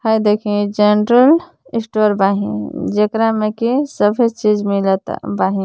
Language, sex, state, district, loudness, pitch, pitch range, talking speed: Bhojpuri, female, Jharkhand, Palamu, -16 LUFS, 210 Hz, 205-230 Hz, 125 wpm